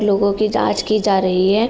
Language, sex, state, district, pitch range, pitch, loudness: Hindi, female, Uttar Pradesh, Jalaun, 195-215 Hz, 200 Hz, -17 LUFS